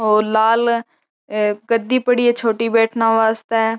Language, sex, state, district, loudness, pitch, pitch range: Marwari, female, Rajasthan, Churu, -17 LUFS, 225 Hz, 220-235 Hz